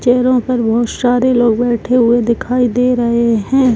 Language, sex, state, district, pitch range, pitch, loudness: Hindi, female, Bihar, Kishanganj, 235-250 Hz, 245 Hz, -13 LUFS